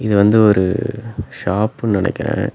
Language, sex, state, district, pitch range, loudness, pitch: Tamil, male, Tamil Nadu, Namakkal, 100-115 Hz, -16 LUFS, 105 Hz